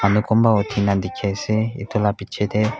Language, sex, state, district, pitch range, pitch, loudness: Nagamese, male, Nagaland, Kohima, 100-110 Hz, 105 Hz, -20 LUFS